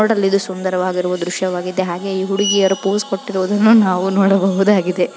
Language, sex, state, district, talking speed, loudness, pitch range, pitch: Kannada, male, Karnataka, Dharwad, 115 wpm, -16 LUFS, 185-200 Hz, 190 Hz